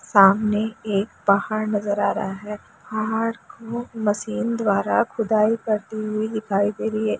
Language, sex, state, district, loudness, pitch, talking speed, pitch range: Hindi, female, Bihar, Gaya, -22 LUFS, 215 Hz, 150 wpm, 205-220 Hz